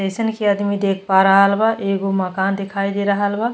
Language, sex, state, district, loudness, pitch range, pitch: Bhojpuri, female, Uttar Pradesh, Deoria, -18 LUFS, 195-205 Hz, 200 Hz